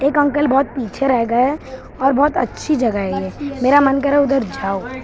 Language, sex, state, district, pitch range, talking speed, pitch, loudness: Hindi, male, Maharashtra, Mumbai Suburban, 245-285 Hz, 225 wpm, 270 Hz, -17 LUFS